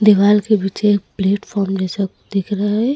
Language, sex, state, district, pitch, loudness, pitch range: Hindi, female, Uttar Pradesh, Lucknow, 205 Hz, -17 LUFS, 195-210 Hz